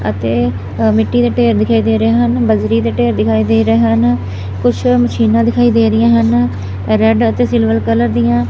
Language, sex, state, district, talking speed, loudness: Punjabi, female, Punjab, Fazilka, 185 wpm, -13 LUFS